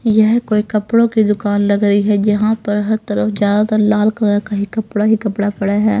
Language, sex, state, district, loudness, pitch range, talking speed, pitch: Hindi, male, Punjab, Pathankot, -15 LUFS, 205-215 Hz, 220 wpm, 210 Hz